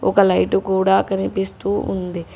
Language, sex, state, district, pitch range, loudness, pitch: Telugu, female, Telangana, Hyderabad, 190-195 Hz, -19 LUFS, 195 Hz